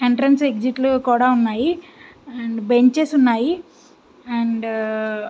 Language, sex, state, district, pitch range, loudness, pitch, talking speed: Telugu, female, Andhra Pradesh, Visakhapatnam, 230-280 Hz, -19 LUFS, 245 Hz, 115 wpm